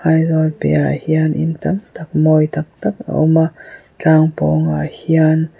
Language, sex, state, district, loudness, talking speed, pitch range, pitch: Mizo, female, Mizoram, Aizawl, -16 LUFS, 170 wpm, 155-160 Hz, 155 Hz